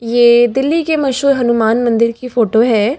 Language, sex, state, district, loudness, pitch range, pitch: Hindi, female, Delhi, New Delhi, -13 LUFS, 230-265 Hz, 240 Hz